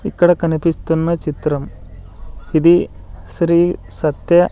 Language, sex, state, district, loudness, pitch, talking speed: Telugu, male, Andhra Pradesh, Sri Satya Sai, -16 LUFS, 160 Hz, 80 wpm